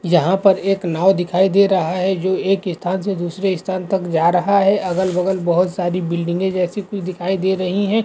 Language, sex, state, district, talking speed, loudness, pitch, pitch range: Hindi, male, Uttar Pradesh, Hamirpur, 210 wpm, -18 LUFS, 185 Hz, 180-195 Hz